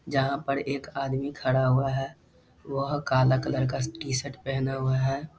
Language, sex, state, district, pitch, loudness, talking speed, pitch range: Hindi, male, Bihar, Jahanabad, 135 Hz, -27 LUFS, 180 wpm, 130-140 Hz